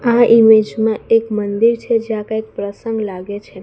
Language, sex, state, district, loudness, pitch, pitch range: Gujarati, female, Gujarat, Gandhinagar, -15 LUFS, 220 Hz, 210-230 Hz